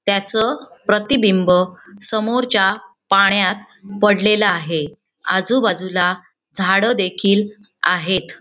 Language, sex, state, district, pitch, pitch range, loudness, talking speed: Marathi, female, Maharashtra, Sindhudurg, 200 Hz, 185-215 Hz, -16 LUFS, 70 wpm